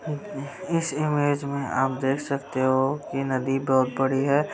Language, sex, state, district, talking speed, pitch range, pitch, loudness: Hindi, male, Bihar, Saharsa, 160 wpm, 135-145 Hz, 140 Hz, -25 LUFS